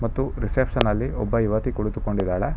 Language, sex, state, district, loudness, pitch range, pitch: Kannada, male, Karnataka, Bangalore, -24 LUFS, 105-130 Hz, 110 Hz